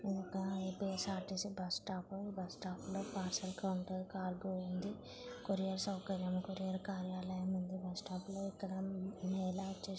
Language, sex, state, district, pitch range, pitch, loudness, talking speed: Telugu, male, Telangana, Nalgonda, 185-195 Hz, 190 Hz, -42 LUFS, 155 wpm